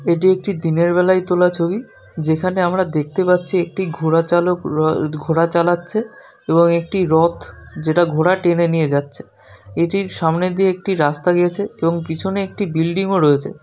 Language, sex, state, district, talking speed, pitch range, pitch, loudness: Bengali, male, West Bengal, North 24 Parganas, 140 wpm, 160-185 Hz, 175 Hz, -17 LUFS